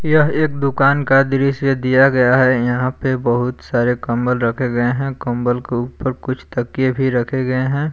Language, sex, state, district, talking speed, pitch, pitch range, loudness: Hindi, male, Jharkhand, Palamu, 190 wpm, 130 Hz, 125-135 Hz, -17 LUFS